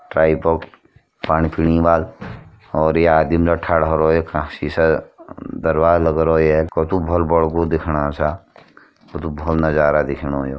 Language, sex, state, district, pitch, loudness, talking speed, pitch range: Hindi, male, Uttarakhand, Uttarkashi, 80 Hz, -17 LUFS, 125 wpm, 80-85 Hz